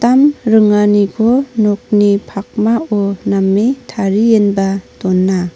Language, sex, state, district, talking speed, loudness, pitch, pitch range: Garo, female, Meghalaya, North Garo Hills, 65 wpm, -13 LUFS, 210 Hz, 195-225 Hz